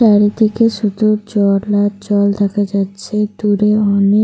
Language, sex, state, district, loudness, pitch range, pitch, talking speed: Bengali, female, Jharkhand, Sahebganj, -14 LUFS, 200-210 Hz, 205 Hz, 125 wpm